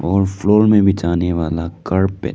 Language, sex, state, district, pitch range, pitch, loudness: Hindi, male, Arunachal Pradesh, Lower Dibang Valley, 85-95 Hz, 95 Hz, -16 LUFS